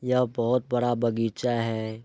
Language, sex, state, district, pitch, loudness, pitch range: Hindi, male, Jharkhand, Jamtara, 120 Hz, -26 LUFS, 115-125 Hz